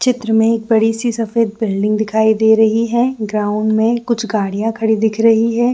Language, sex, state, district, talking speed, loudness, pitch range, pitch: Hindi, female, Jharkhand, Jamtara, 190 wpm, -15 LUFS, 220-230 Hz, 225 Hz